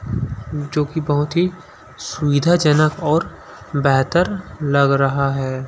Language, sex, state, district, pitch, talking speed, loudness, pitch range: Hindi, male, Chhattisgarh, Sukma, 145 Hz, 105 wpm, -18 LUFS, 135-160 Hz